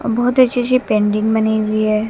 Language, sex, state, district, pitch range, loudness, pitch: Hindi, female, Haryana, Jhajjar, 215-245 Hz, -15 LUFS, 220 Hz